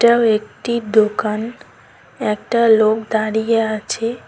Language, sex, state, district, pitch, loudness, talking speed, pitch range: Bengali, female, West Bengal, Cooch Behar, 220 Hz, -17 LUFS, 100 wpm, 215-235 Hz